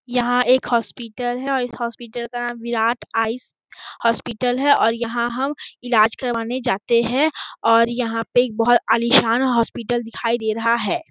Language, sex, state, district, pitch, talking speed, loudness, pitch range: Hindi, female, Jharkhand, Sahebganj, 235 Hz, 155 wpm, -20 LUFS, 230-245 Hz